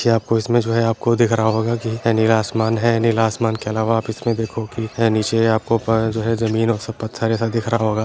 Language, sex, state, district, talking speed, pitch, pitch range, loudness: Kumaoni, male, Uttarakhand, Uttarkashi, 255 wpm, 115 Hz, 110-115 Hz, -19 LUFS